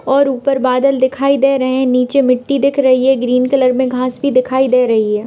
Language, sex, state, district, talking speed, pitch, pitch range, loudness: Hindi, female, Jharkhand, Jamtara, 250 wpm, 260 Hz, 250-275 Hz, -13 LUFS